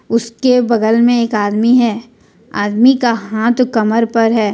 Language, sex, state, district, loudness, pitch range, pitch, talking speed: Hindi, female, Jharkhand, Ranchi, -13 LUFS, 220-240 Hz, 230 Hz, 160 wpm